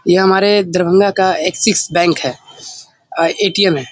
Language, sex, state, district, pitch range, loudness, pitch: Hindi, male, Bihar, Darbhanga, 170-195 Hz, -13 LUFS, 185 Hz